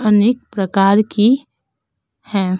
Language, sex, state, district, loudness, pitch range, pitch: Hindi, female, Uttar Pradesh, Hamirpur, -15 LUFS, 195-230 Hz, 210 Hz